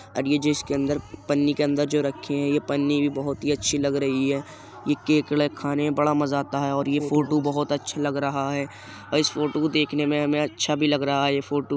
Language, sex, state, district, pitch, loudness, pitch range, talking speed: Hindi, male, Uttar Pradesh, Jyotiba Phule Nagar, 145 Hz, -24 LUFS, 140-150 Hz, 260 wpm